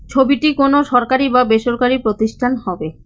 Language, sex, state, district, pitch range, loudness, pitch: Bengali, female, West Bengal, Cooch Behar, 225-270 Hz, -15 LUFS, 250 Hz